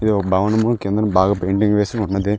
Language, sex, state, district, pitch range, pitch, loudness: Telugu, male, Telangana, Karimnagar, 95-105 Hz, 105 Hz, -18 LUFS